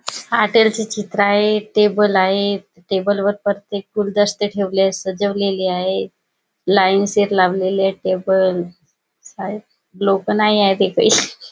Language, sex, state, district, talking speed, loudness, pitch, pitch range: Marathi, female, Maharashtra, Chandrapur, 120 wpm, -17 LUFS, 200 Hz, 190-205 Hz